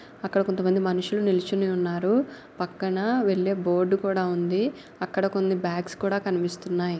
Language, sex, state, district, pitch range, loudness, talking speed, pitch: Telugu, female, Andhra Pradesh, Guntur, 180-195 Hz, -26 LUFS, 135 wpm, 190 Hz